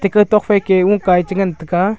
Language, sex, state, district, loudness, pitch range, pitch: Wancho, male, Arunachal Pradesh, Longding, -14 LUFS, 180-205 Hz, 195 Hz